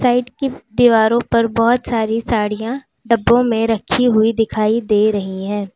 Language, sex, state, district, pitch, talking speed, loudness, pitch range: Hindi, female, Uttar Pradesh, Lalitpur, 230 Hz, 155 wpm, -16 LUFS, 215-240 Hz